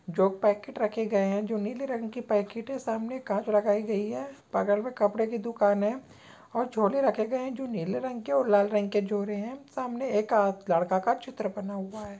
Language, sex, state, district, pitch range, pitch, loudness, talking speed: Hindi, female, Bihar, East Champaran, 205-240 Hz, 215 Hz, -29 LUFS, 220 wpm